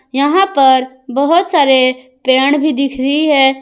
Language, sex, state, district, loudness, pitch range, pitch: Hindi, female, Jharkhand, Ranchi, -12 LUFS, 260-290 Hz, 275 Hz